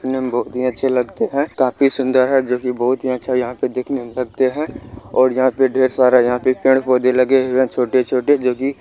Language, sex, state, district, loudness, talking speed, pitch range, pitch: Hindi, male, Bihar, Gopalganj, -17 LUFS, 240 wpm, 125-130 Hz, 130 Hz